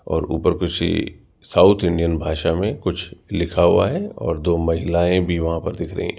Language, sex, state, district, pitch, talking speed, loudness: Hindi, male, Rajasthan, Jaipur, 85 Hz, 195 wpm, -20 LUFS